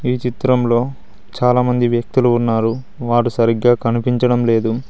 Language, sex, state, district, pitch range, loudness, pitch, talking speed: Telugu, male, Telangana, Mahabubabad, 115-125 Hz, -16 LUFS, 120 Hz, 110 wpm